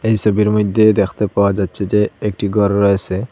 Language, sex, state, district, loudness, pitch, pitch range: Bengali, male, Assam, Hailakandi, -15 LUFS, 105 Hz, 100-105 Hz